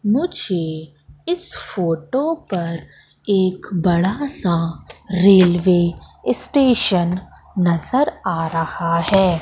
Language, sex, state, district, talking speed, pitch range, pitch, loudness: Hindi, female, Madhya Pradesh, Katni, 85 wpm, 170-210 Hz, 180 Hz, -18 LUFS